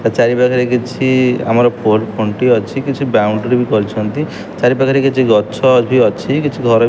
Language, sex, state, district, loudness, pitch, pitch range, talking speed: Odia, male, Odisha, Khordha, -14 LUFS, 125 Hz, 110-130 Hz, 185 wpm